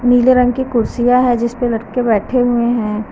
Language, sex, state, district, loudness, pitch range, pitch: Hindi, female, Uttar Pradesh, Lucknow, -14 LUFS, 230-250 Hz, 245 Hz